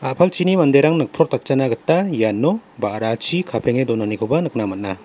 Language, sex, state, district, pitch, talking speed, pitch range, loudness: Garo, male, Meghalaya, West Garo Hills, 135 Hz, 120 wpm, 110-165 Hz, -18 LUFS